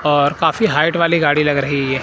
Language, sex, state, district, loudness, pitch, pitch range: Hindi, male, Punjab, Kapurthala, -15 LUFS, 150 Hz, 145-165 Hz